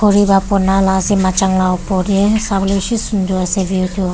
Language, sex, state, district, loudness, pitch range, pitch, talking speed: Nagamese, female, Nagaland, Kohima, -14 LUFS, 185-200 Hz, 195 Hz, 190 wpm